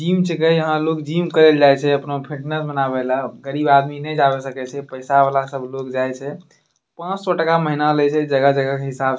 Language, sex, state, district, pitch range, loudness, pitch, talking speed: Angika, male, Bihar, Bhagalpur, 135-155 Hz, -18 LUFS, 140 Hz, 230 wpm